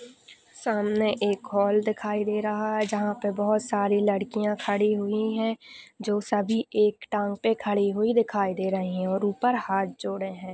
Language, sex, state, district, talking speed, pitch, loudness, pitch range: Hindi, female, Maharashtra, Pune, 175 wpm, 210 Hz, -26 LUFS, 200-215 Hz